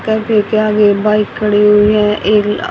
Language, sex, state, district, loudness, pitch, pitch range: Hindi, female, Haryana, Rohtak, -12 LUFS, 210 Hz, 210-215 Hz